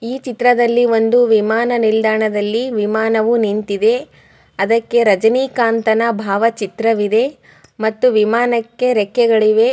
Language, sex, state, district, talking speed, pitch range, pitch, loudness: Kannada, female, Karnataka, Chamarajanagar, 85 wpm, 220-240 Hz, 225 Hz, -15 LUFS